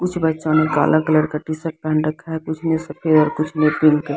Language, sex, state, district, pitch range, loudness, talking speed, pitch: Hindi, female, Bihar, Patna, 155-160 Hz, -19 LUFS, 260 wpm, 155 Hz